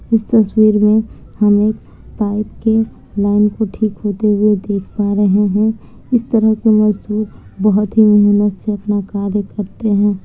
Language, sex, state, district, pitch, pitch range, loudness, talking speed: Hindi, female, Bihar, Kishanganj, 210 Hz, 205-215 Hz, -15 LUFS, 165 wpm